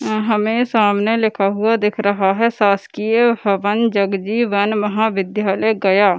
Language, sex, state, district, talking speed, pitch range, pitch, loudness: Hindi, female, Bihar, Gaya, 135 wpm, 200-220 Hz, 210 Hz, -17 LUFS